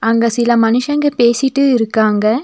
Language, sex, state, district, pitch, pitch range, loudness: Tamil, female, Tamil Nadu, Nilgiris, 235 Hz, 225-265 Hz, -13 LUFS